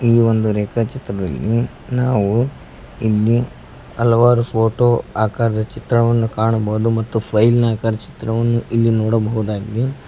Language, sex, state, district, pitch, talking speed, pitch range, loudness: Kannada, male, Karnataka, Koppal, 115 Hz, 105 wpm, 110-120 Hz, -17 LUFS